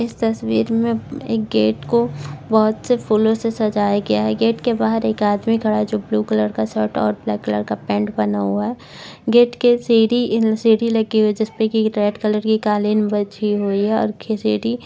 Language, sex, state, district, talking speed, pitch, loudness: Hindi, female, Maharashtra, Dhule, 200 wpm, 215 Hz, -18 LUFS